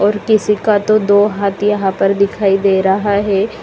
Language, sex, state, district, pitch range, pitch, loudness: Hindi, female, Uttar Pradesh, Lalitpur, 195-210 Hz, 205 Hz, -14 LUFS